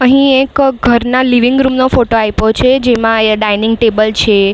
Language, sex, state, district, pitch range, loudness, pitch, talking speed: Gujarati, female, Maharashtra, Mumbai Suburban, 220-260 Hz, -10 LUFS, 240 Hz, 185 wpm